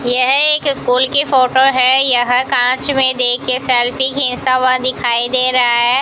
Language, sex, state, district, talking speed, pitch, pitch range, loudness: Hindi, female, Rajasthan, Bikaner, 170 wpm, 255 Hz, 250-265 Hz, -12 LUFS